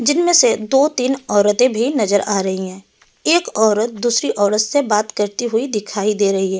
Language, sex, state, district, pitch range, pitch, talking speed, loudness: Hindi, female, Delhi, New Delhi, 205-260 Hz, 215 Hz, 200 wpm, -16 LUFS